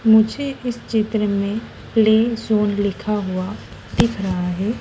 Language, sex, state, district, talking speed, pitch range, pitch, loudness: Hindi, female, Madhya Pradesh, Dhar, 135 wpm, 200-225 Hz, 215 Hz, -20 LUFS